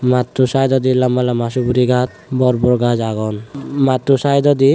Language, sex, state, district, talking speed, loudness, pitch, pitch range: Chakma, male, Tripura, West Tripura, 150 wpm, -16 LUFS, 125 Hz, 125-135 Hz